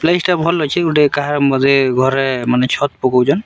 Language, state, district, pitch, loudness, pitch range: Sambalpuri, Odisha, Sambalpur, 140 Hz, -14 LUFS, 130-165 Hz